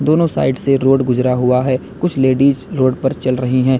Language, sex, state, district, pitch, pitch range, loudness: Hindi, male, Uttar Pradesh, Lalitpur, 130 Hz, 130-140 Hz, -15 LUFS